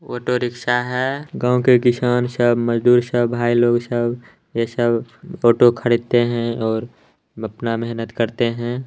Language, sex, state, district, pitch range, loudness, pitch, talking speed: Maithili, male, Bihar, Samastipur, 115-125 Hz, -19 LUFS, 120 Hz, 150 wpm